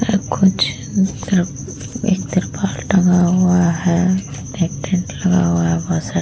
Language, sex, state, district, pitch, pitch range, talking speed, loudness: Hindi, female, Uttar Pradesh, Muzaffarnagar, 180 Hz, 140-185 Hz, 155 wpm, -17 LUFS